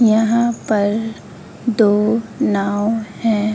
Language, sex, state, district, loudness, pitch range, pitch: Hindi, female, Bihar, Begusarai, -17 LUFS, 210-225 Hz, 220 Hz